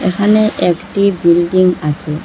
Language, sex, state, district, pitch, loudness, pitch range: Bengali, female, Assam, Hailakandi, 185 Hz, -13 LUFS, 170-200 Hz